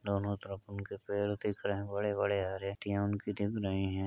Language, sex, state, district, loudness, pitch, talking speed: Hindi, male, Uttar Pradesh, Etah, -36 LUFS, 100 Hz, 120 wpm